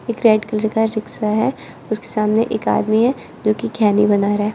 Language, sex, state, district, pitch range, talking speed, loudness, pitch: Hindi, female, Arunachal Pradesh, Lower Dibang Valley, 215-230 Hz, 225 wpm, -18 LUFS, 220 Hz